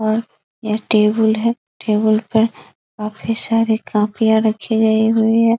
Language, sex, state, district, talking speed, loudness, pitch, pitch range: Hindi, female, Bihar, East Champaran, 150 wpm, -17 LUFS, 220 Hz, 215-225 Hz